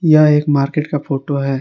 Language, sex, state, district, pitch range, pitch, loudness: Hindi, male, Jharkhand, Garhwa, 140-150 Hz, 145 Hz, -15 LUFS